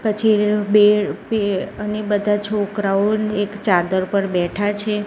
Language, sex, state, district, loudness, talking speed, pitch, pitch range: Gujarati, female, Gujarat, Gandhinagar, -19 LUFS, 130 wpm, 205 Hz, 200-210 Hz